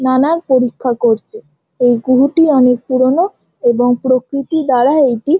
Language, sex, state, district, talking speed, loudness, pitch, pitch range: Bengali, female, West Bengal, Jhargram, 135 wpm, -13 LUFS, 260 Hz, 245-290 Hz